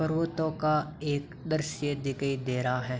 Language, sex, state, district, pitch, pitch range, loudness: Hindi, male, Uttar Pradesh, Hamirpur, 145 Hz, 135-155 Hz, -30 LUFS